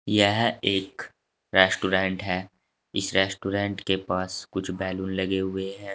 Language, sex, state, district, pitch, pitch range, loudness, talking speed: Hindi, male, Uttar Pradesh, Saharanpur, 95 Hz, 95-100 Hz, -25 LUFS, 130 wpm